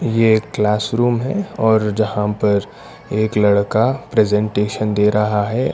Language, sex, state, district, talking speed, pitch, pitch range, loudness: Hindi, male, Karnataka, Bangalore, 135 wpm, 105 Hz, 105-115 Hz, -17 LUFS